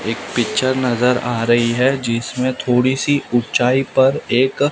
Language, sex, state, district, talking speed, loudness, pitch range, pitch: Hindi, male, Maharashtra, Mumbai Suburban, 150 wpm, -17 LUFS, 120-130 Hz, 125 Hz